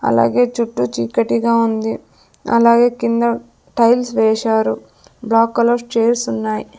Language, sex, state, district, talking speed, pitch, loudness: Telugu, female, Andhra Pradesh, Sri Satya Sai, 105 wpm, 230 Hz, -16 LUFS